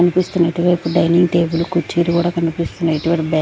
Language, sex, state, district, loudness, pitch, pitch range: Telugu, female, Andhra Pradesh, Sri Satya Sai, -17 LUFS, 170 Hz, 165-175 Hz